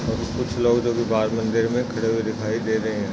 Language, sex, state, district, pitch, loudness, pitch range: Hindi, male, Chhattisgarh, Raigarh, 115 Hz, -23 LUFS, 110-120 Hz